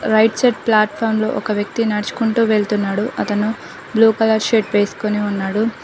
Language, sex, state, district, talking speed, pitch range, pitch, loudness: Telugu, female, Telangana, Mahabubabad, 155 wpm, 205-225 Hz, 215 Hz, -17 LUFS